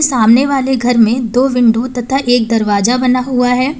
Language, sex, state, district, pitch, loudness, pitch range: Hindi, female, Uttar Pradesh, Lalitpur, 250 Hz, -12 LUFS, 235-260 Hz